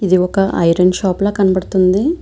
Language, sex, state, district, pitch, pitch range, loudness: Telugu, female, Andhra Pradesh, Visakhapatnam, 190 Hz, 185-200 Hz, -14 LUFS